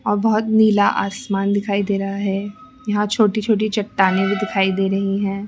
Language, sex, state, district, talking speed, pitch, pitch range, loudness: Hindi, female, Rajasthan, Jaipur, 185 wpm, 205 Hz, 195-215 Hz, -19 LUFS